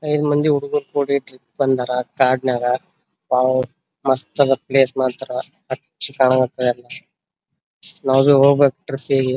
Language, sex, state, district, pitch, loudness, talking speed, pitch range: Kannada, male, Karnataka, Gulbarga, 130 Hz, -18 LUFS, 130 wpm, 130-140 Hz